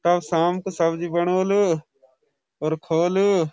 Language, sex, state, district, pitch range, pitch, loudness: Garhwali, male, Uttarakhand, Uttarkashi, 160-185 Hz, 170 Hz, -22 LUFS